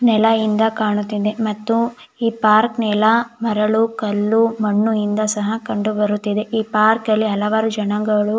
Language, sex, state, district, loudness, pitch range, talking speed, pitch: Kannada, female, Karnataka, Shimoga, -18 LUFS, 210-225 Hz, 135 wpm, 215 Hz